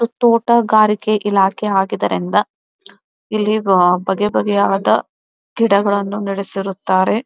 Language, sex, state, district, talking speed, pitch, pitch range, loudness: Kannada, female, Karnataka, Belgaum, 75 wpm, 205 Hz, 195-215 Hz, -16 LUFS